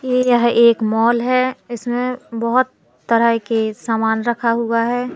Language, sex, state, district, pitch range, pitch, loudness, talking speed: Hindi, female, Madhya Pradesh, Katni, 230-245 Hz, 235 Hz, -17 LUFS, 150 wpm